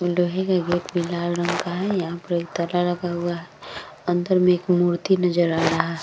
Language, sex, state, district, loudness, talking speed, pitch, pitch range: Hindi, female, Bihar, Vaishali, -22 LUFS, 230 wpm, 175 Hz, 170-180 Hz